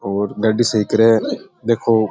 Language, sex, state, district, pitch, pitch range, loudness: Rajasthani, male, Rajasthan, Churu, 110 Hz, 105-115 Hz, -17 LUFS